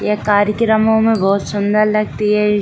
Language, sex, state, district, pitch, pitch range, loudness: Hindi, female, Bihar, Saran, 210 Hz, 205-215 Hz, -15 LUFS